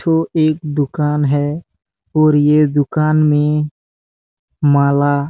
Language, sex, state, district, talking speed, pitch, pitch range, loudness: Hindi, male, Chhattisgarh, Bastar, 100 wpm, 150 Hz, 140-155 Hz, -15 LUFS